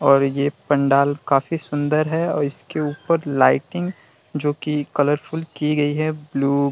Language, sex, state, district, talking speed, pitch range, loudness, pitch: Hindi, male, Bihar, Vaishali, 170 wpm, 140-155 Hz, -21 LUFS, 145 Hz